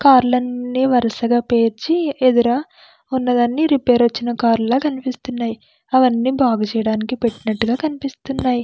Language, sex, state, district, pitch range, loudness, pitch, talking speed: Telugu, female, Andhra Pradesh, Krishna, 235-265 Hz, -18 LUFS, 245 Hz, 105 wpm